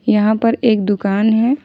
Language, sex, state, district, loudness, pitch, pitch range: Hindi, female, Jharkhand, Ranchi, -15 LUFS, 220 Hz, 205-230 Hz